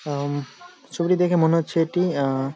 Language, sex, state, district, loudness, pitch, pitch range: Bengali, male, West Bengal, Jalpaiguri, -22 LUFS, 165 Hz, 145-180 Hz